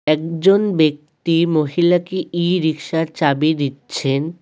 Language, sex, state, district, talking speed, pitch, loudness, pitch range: Bengali, male, West Bengal, Alipurduar, 95 wpm, 160 Hz, -18 LUFS, 150-175 Hz